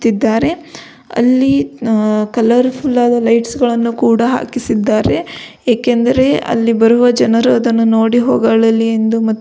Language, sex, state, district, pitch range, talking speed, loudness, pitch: Kannada, female, Karnataka, Belgaum, 225-245 Hz, 110 wpm, -13 LUFS, 235 Hz